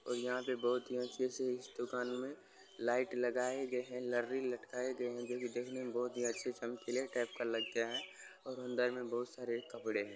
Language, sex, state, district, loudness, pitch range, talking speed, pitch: Hindi, male, Bihar, Supaul, -40 LUFS, 120-125 Hz, 205 wpm, 125 Hz